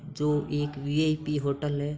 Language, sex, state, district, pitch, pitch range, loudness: Hindi, male, Uttar Pradesh, Hamirpur, 150 Hz, 145-150 Hz, -28 LUFS